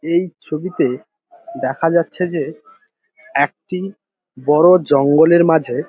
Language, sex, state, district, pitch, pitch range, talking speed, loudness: Bengali, male, West Bengal, Dakshin Dinajpur, 170 Hz, 155-195 Hz, 100 wpm, -16 LUFS